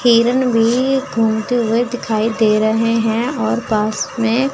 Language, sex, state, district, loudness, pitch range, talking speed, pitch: Hindi, female, Chandigarh, Chandigarh, -16 LUFS, 220-245 Hz, 145 wpm, 230 Hz